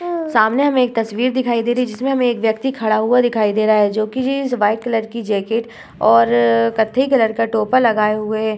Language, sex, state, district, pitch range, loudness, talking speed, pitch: Hindi, female, Uttar Pradesh, Budaun, 215-250 Hz, -16 LUFS, 225 wpm, 230 Hz